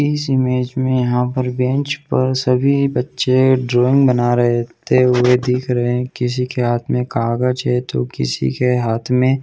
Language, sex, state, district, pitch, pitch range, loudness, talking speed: Hindi, male, Chhattisgarh, Bilaspur, 125 Hz, 125-130 Hz, -17 LUFS, 160 wpm